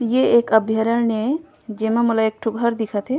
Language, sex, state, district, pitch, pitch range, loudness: Chhattisgarhi, female, Chhattisgarh, Korba, 225 Hz, 220-235 Hz, -19 LUFS